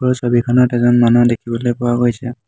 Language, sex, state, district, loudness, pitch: Assamese, male, Assam, Hailakandi, -14 LUFS, 120 Hz